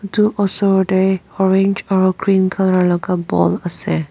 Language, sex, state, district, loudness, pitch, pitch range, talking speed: Nagamese, female, Nagaland, Dimapur, -16 LUFS, 190 Hz, 180-195 Hz, 145 wpm